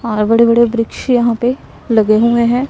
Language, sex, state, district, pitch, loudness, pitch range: Hindi, male, Punjab, Pathankot, 235 Hz, -13 LUFS, 225-235 Hz